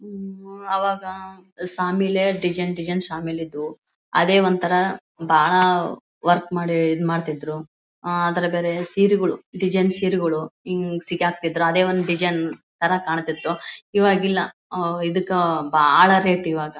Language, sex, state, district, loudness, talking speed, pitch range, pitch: Kannada, female, Karnataka, Bellary, -21 LUFS, 115 wpm, 165-185 Hz, 175 Hz